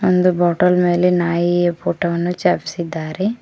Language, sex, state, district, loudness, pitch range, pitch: Kannada, female, Karnataka, Koppal, -17 LUFS, 170-180 Hz, 175 Hz